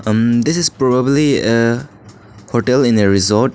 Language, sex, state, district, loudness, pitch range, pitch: English, male, Arunachal Pradesh, Lower Dibang Valley, -14 LUFS, 105-130 Hz, 115 Hz